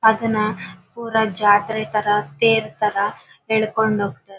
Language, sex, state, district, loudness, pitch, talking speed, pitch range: Kannada, female, Karnataka, Dharwad, -20 LUFS, 215 Hz, 110 wpm, 205-220 Hz